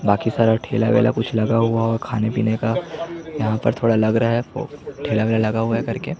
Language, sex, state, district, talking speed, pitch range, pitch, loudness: Hindi, male, Chhattisgarh, Jashpur, 195 wpm, 110-120 Hz, 115 Hz, -20 LUFS